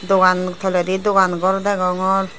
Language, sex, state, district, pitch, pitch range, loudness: Chakma, female, Tripura, Dhalai, 190 Hz, 185-195 Hz, -17 LUFS